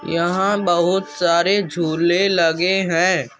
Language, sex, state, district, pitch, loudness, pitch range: Hindi, male, Andhra Pradesh, Anantapur, 175 Hz, -18 LUFS, 170-190 Hz